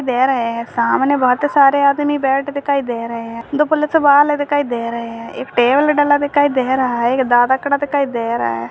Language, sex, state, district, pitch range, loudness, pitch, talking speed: Hindi, male, Uttarakhand, Tehri Garhwal, 235-285 Hz, -15 LUFS, 265 Hz, 220 wpm